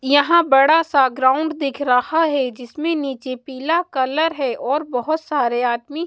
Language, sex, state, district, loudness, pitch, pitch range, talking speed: Hindi, female, Bihar, West Champaran, -18 LUFS, 280 Hz, 260-315 Hz, 160 wpm